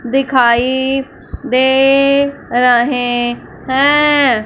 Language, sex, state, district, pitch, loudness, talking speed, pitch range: Hindi, female, Punjab, Fazilka, 260 Hz, -12 LUFS, 55 wpm, 245-275 Hz